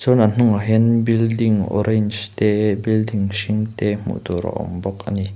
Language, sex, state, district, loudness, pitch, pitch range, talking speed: Mizo, male, Mizoram, Aizawl, -19 LUFS, 105 Hz, 100-110 Hz, 180 wpm